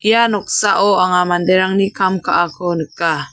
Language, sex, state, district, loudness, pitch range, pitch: Garo, female, Meghalaya, South Garo Hills, -15 LUFS, 175-195 Hz, 185 Hz